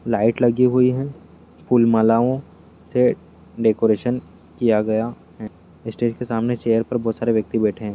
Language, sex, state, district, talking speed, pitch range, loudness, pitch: Hindi, male, Bihar, Jamui, 160 wpm, 110-120 Hz, -20 LUFS, 115 Hz